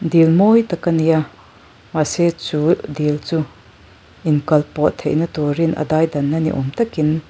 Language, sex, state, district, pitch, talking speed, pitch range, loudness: Mizo, female, Mizoram, Aizawl, 155 Hz, 155 wpm, 150-165 Hz, -17 LUFS